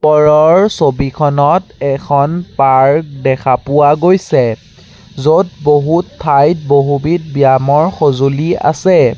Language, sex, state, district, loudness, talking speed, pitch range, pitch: Assamese, male, Assam, Sonitpur, -11 LUFS, 90 wpm, 140-160 Hz, 145 Hz